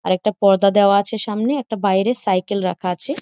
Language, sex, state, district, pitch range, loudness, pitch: Bengali, female, West Bengal, Jhargram, 190-220 Hz, -18 LUFS, 200 Hz